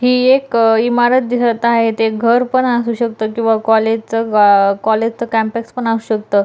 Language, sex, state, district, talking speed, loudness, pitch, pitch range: Marathi, female, Maharashtra, Dhule, 175 wpm, -14 LUFS, 230 Hz, 220-240 Hz